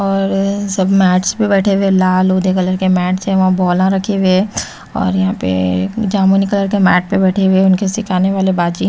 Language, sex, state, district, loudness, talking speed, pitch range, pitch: Hindi, female, Chhattisgarh, Raipur, -14 LUFS, 210 wpm, 185-195 Hz, 190 Hz